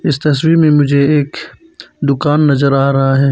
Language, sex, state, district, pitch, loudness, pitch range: Hindi, male, Arunachal Pradesh, Papum Pare, 145 Hz, -12 LUFS, 140-150 Hz